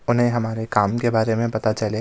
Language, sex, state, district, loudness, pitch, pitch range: Hindi, male, Himachal Pradesh, Shimla, -21 LUFS, 110 Hz, 110-120 Hz